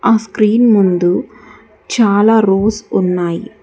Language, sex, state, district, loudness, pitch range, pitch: Telugu, female, Telangana, Hyderabad, -13 LUFS, 185-225 Hz, 210 Hz